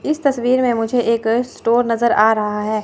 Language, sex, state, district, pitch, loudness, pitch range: Hindi, female, Chandigarh, Chandigarh, 235 Hz, -17 LUFS, 220-245 Hz